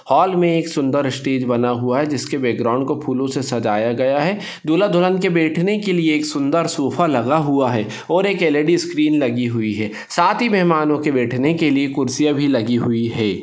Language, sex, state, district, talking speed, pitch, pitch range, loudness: Hindi, male, Maharashtra, Solapur, 205 wpm, 145 Hz, 125-165 Hz, -18 LUFS